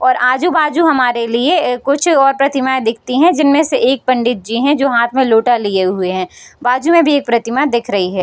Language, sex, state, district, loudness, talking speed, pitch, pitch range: Hindi, female, Bihar, Bhagalpur, -13 LUFS, 220 wpm, 255 Hz, 235-285 Hz